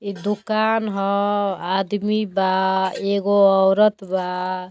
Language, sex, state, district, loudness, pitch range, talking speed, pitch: Bhojpuri, female, Uttar Pradesh, Gorakhpur, -20 LUFS, 190-205 Hz, 100 wpm, 200 Hz